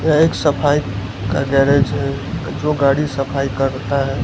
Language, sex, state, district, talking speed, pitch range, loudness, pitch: Hindi, male, Gujarat, Valsad, 155 wpm, 135-145 Hz, -17 LUFS, 140 Hz